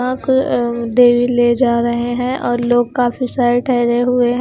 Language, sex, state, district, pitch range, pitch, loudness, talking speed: Hindi, female, Himachal Pradesh, Shimla, 240-250 Hz, 245 Hz, -15 LUFS, 175 wpm